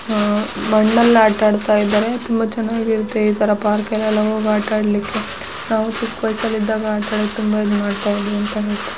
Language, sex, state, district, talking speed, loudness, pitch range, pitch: Kannada, female, Karnataka, Shimoga, 135 wpm, -17 LUFS, 210-220 Hz, 215 Hz